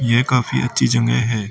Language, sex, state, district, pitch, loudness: Hindi, male, Uttar Pradesh, Shamli, 110 Hz, -17 LUFS